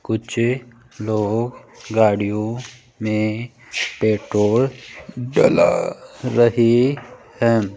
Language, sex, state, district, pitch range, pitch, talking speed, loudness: Hindi, male, Rajasthan, Jaipur, 110-125 Hz, 115 Hz, 60 wpm, -19 LUFS